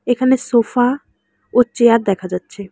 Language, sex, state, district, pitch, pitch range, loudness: Bengali, female, West Bengal, Alipurduar, 240 Hz, 200-245 Hz, -16 LUFS